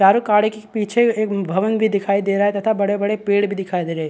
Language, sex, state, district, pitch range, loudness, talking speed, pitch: Hindi, male, Chhattisgarh, Bastar, 195-215 Hz, -19 LUFS, 265 wpm, 205 Hz